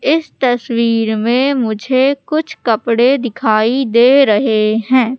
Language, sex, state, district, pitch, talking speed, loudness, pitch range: Hindi, female, Madhya Pradesh, Katni, 245 Hz, 115 wpm, -13 LUFS, 225-270 Hz